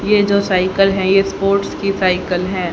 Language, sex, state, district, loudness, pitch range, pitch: Hindi, female, Haryana, Jhajjar, -15 LUFS, 185-200 Hz, 195 Hz